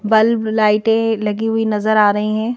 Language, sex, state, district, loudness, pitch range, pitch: Hindi, female, Madhya Pradesh, Bhopal, -16 LUFS, 215-225 Hz, 220 Hz